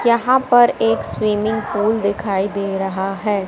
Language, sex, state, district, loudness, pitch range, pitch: Hindi, female, Madhya Pradesh, Katni, -18 LUFS, 195-220 Hz, 205 Hz